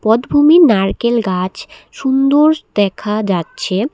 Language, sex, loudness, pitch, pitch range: Bengali, female, -14 LUFS, 225 Hz, 195-275 Hz